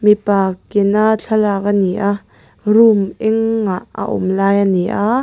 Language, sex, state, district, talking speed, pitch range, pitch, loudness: Mizo, female, Mizoram, Aizawl, 170 wpm, 195-220 Hz, 205 Hz, -15 LUFS